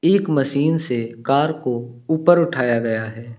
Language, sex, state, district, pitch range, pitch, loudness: Hindi, male, Uttar Pradesh, Lucknow, 115-160 Hz, 135 Hz, -19 LUFS